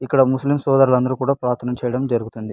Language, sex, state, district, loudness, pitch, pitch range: Telugu, male, Andhra Pradesh, Anantapur, -19 LUFS, 130 Hz, 125-135 Hz